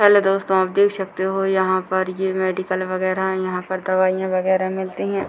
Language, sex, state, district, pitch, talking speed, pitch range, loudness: Hindi, female, Bihar, Purnia, 190 Hz, 215 wpm, 185-190 Hz, -20 LUFS